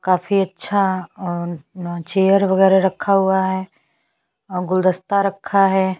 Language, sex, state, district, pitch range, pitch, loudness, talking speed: Hindi, female, Chhattisgarh, Bastar, 185-195 Hz, 190 Hz, -18 LUFS, 110 wpm